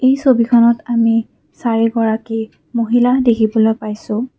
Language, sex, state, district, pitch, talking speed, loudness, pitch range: Assamese, female, Assam, Kamrup Metropolitan, 230 Hz, 110 wpm, -15 LUFS, 225-240 Hz